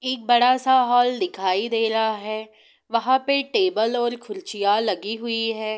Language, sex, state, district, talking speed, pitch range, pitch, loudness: Hindi, female, Bihar, Sitamarhi, 165 wpm, 215-250 Hz, 225 Hz, -21 LUFS